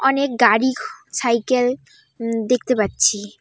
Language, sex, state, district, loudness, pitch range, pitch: Bengali, female, West Bengal, Cooch Behar, -19 LUFS, 225-260 Hz, 245 Hz